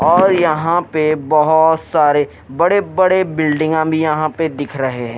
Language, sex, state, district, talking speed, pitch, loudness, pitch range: Hindi, male, Himachal Pradesh, Shimla, 175 wpm, 155 Hz, -15 LUFS, 150-165 Hz